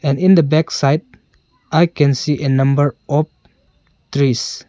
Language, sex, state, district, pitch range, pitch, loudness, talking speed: English, male, Arunachal Pradesh, Longding, 135-155 Hz, 145 Hz, -16 LUFS, 140 wpm